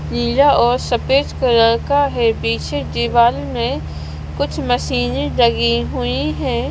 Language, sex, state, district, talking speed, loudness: Hindi, female, Punjab, Kapurthala, 125 wpm, -17 LUFS